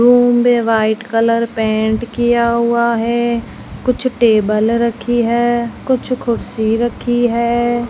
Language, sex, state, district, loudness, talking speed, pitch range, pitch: Hindi, female, Rajasthan, Jaisalmer, -15 LUFS, 120 wpm, 230-240 Hz, 235 Hz